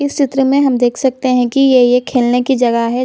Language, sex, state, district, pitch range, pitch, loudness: Hindi, female, Chhattisgarh, Bilaspur, 245-270 Hz, 255 Hz, -13 LUFS